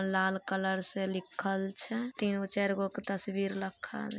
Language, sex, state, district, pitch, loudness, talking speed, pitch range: Maithili, female, Bihar, Samastipur, 195 Hz, -34 LUFS, 200 wpm, 190-195 Hz